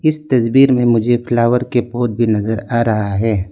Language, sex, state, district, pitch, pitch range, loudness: Hindi, male, Arunachal Pradesh, Lower Dibang Valley, 120 Hz, 110-125 Hz, -15 LUFS